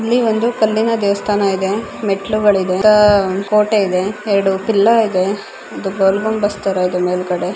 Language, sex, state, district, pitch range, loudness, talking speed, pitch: Kannada, female, Karnataka, Bijapur, 190-215 Hz, -15 LUFS, 125 wpm, 200 Hz